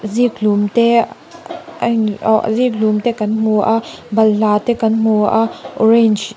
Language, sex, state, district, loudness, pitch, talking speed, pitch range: Mizo, female, Mizoram, Aizawl, -15 LUFS, 220 Hz, 140 wpm, 215-230 Hz